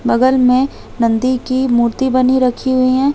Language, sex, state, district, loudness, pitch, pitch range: Hindi, female, Chhattisgarh, Bastar, -14 LUFS, 255 Hz, 250-260 Hz